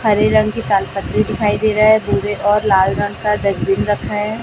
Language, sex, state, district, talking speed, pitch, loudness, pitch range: Hindi, male, Chhattisgarh, Raipur, 215 wpm, 210 Hz, -16 LUFS, 205-215 Hz